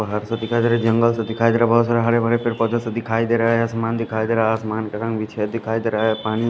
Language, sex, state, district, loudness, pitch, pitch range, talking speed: Hindi, male, Himachal Pradesh, Shimla, -20 LUFS, 115 Hz, 110-115 Hz, 325 wpm